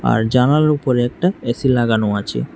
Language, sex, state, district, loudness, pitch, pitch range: Bengali, male, Tripura, West Tripura, -17 LUFS, 125 Hz, 115-140 Hz